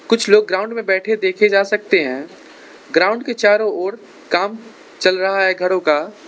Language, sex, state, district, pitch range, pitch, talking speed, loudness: Hindi, male, Arunachal Pradesh, Lower Dibang Valley, 190-220 Hz, 205 Hz, 180 wpm, -16 LUFS